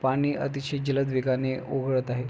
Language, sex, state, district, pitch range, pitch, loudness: Marathi, male, Maharashtra, Pune, 130-140 Hz, 130 Hz, -27 LUFS